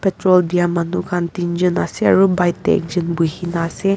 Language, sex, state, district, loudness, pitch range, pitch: Nagamese, female, Nagaland, Kohima, -17 LUFS, 170-185 Hz, 175 Hz